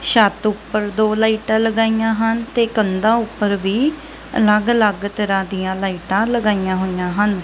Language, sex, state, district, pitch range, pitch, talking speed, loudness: Punjabi, female, Punjab, Kapurthala, 200-225 Hz, 215 Hz, 145 wpm, -18 LUFS